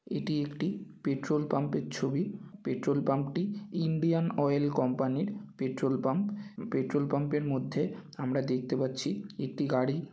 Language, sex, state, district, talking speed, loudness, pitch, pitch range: Bengali, male, West Bengal, North 24 Parganas, 140 wpm, -32 LUFS, 145 Hz, 135-170 Hz